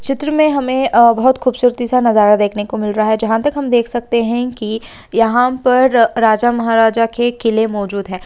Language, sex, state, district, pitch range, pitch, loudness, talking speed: Hindi, female, Bihar, Bhagalpur, 220-250 Hz, 235 Hz, -14 LUFS, 195 wpm